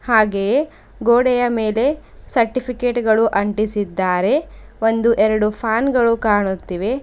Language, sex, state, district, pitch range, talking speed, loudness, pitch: Kannada, female, Karnataka, Bidar, 210-245 Hz, 95 wpm, -18 LUFS, 225 Hz